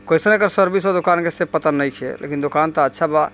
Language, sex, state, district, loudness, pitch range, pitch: Bhojpuri, male, Bihar, East Champaran, -18 LUFS, 150-180 Hz, 165 Hz